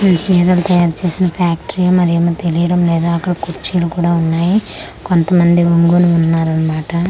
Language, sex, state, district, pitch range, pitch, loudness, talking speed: Telugu, female, Andhra Pradesh, Manyam, 170-180 Hz, 170 Hz, -14 LUFS, 125 wpm